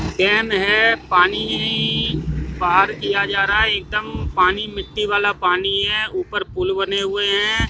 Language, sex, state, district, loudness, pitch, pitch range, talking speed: Hindi, male, Haryana, Jhajjar, -18 LUFS, 200 Hz, 185-210 Hz, 150 wpm